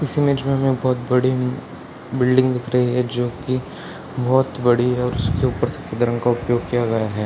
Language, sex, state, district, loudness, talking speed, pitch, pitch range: Hindi, male, Bihar, Sitamarhi, -20 LUFS, 200 wpm, 125 Hz, 120-130 Hz